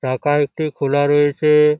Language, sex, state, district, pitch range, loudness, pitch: Bengali, male, West Bengal, Jhargram, 140-150 Hz, -17 LUFS, 145 Hz